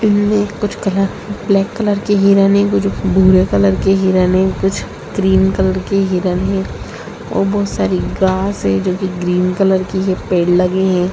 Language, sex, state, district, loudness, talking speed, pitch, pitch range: Hindi, female, Bihar, Sitamarhi, -15 LUFS, 180 wpm, 190 Hz, 185-195 Hz